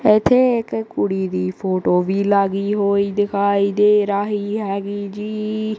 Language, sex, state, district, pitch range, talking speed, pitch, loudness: Punjabi, female, Punjab, Kapurthala, 200-215 Hz, 135 wpm, 205 Hz, -19 LUFS